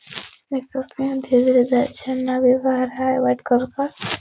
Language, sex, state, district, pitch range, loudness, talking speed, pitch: Hindi, female, Uttar Pradesh, Etah, 250-265 Hz, -20 LUFS, 100 wpm, 255 Hz